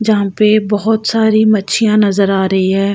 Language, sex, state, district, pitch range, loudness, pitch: Hindi, female, Uttar Pradesh, Jalaun, 200-220 Hz, -12 LUFS, 210 Hz